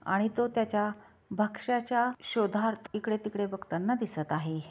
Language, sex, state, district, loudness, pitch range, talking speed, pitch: Marathi, female, Maharashtra, Dhule, -31 LUFS, 195-230 Hz, 125 wpm, 210 Hz